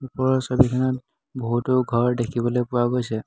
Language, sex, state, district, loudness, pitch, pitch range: Assamese, male, Assam, Hailakandi, -22 LUFS, 125 Hz, 120-130 Hz